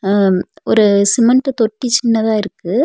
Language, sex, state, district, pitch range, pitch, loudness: Tamil, female, Tamil Nadu, Nilgiris, 200-235 Hz, 220 Hz, -14 LUFS